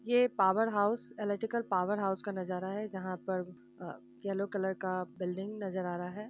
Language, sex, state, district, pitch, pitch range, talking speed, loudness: Hindi, female, Bihar, Gopalganj, 195 Hz, 185-205 Hz, 190 wpm, -34 LUFS